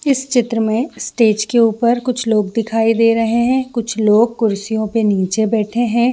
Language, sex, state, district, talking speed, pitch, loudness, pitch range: Hindi, female, Jharkhand, Jamtara, 185 wpm, 230 Hz, -16 LUFS, 220-240 Hz